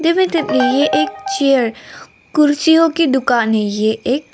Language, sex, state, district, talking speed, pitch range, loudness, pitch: Hindi, female, Arunachal Pradesh, Papum Pare, 110 wpm, 245-330 Hz, -15 LUFS, 285 Hz